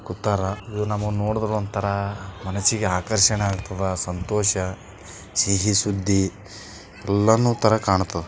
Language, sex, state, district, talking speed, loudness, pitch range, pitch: Kannada, male, Karnataka, Bijapur, 100 wpm, -22 LUFS, 95-105 Hz, 100 Hz